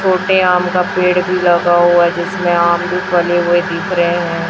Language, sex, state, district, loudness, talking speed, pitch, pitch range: Hindi, male, Chhattisgarh, Raipur, -13 LUFS, 215 wpm, 175 Hz, 175-180 Hz